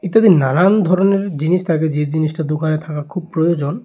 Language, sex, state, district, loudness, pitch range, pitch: Bengali, male, Tripura, West Tripura, -16 LUFS, 155-185 Hz, 165 Hz